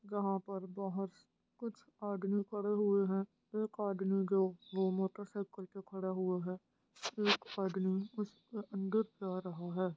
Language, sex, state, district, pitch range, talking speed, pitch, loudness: Hindi, female, Bihar, Darbhanga, 190-205 Hz, 145 wpm, 195 Hz, -38 LUFS